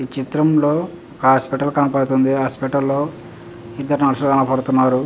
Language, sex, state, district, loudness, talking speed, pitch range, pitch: Telugu, male, Andhra Pradesh, Visakhapatnam, -18 LUFS, 105 wpm, 130-145 Hz, 135 Hz